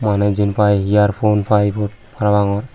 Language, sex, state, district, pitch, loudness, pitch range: Chakma, female, Tripura, Unakoti, 105 Hz, -16 LUFS, 100-105 Hz